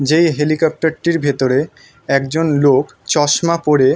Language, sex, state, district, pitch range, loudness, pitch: Bengali, male, West Bengal, North 24 Parganas, 140-160 Hz, -15 LUFS, 150 Hz